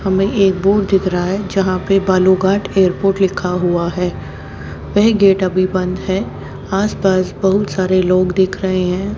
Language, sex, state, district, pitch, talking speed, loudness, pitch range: Hindi, female, Haryana, Jhajjar, 190 Hz, 170 wpm, -15 LUFS, 185-195 Hz